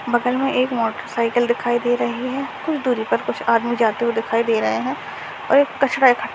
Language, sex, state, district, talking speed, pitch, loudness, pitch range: Hindi, male, Uttarakhand, Tehri Garhwal, 225 wpm, 240 Hz, -20 LUFS, 235-255 Hz